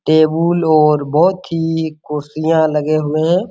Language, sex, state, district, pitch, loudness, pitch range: Hindi, male, Bihar, Araria, 155 Hz, -15 LUFS, 155-165 Hz